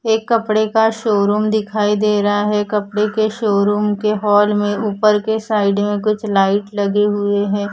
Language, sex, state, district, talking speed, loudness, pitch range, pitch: Hindi, female, Odisha, Khordha, 180 wpm, -16 LUFS, 205-215 Hz, 210 Hz